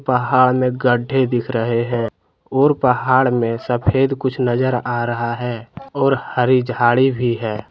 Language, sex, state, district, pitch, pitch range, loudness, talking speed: Hindi, male, Jharkhand, Deoghar, 125 Hz, 120-130 Hz, -18 LUFS, 165 wpm